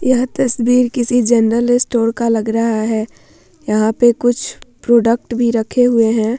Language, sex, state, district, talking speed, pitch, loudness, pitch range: Hindi, female, Bihar, Vaishali, 170 wpm, 235 Hz, -15 LUFS, 225-245 Hz